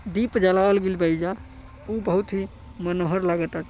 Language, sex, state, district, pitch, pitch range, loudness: Bhojpuri, male, Uttar Pradesh, Deoria, 190 Hz, 175-200 Hz, -23 LUFS